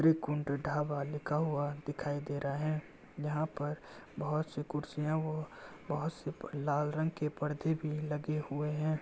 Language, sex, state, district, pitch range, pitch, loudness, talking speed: Hindi, male, Uttar Pradesh, Varanasi, 145-155 Hz, 150 Hz, -36 LUFS, 165 wpm